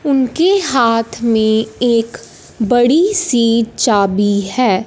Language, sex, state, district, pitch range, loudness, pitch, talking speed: Hindi, male, Punjab, Fazilka, 220-255 Hz, -14 LUFS, 230 Hz, 100 wpm